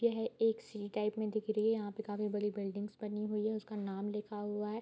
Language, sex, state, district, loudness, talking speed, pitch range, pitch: Hindi, female, Bihar, Bhagalpur, -38 LUFS, 260 wpm, 210-220 Hz, 210 Hz